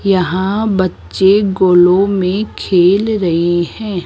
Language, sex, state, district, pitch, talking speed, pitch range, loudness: Hindi, female, Rajasthan, Jaipur, 190 Hz, 105 wpm, 180-200 Hz, -13 LUFS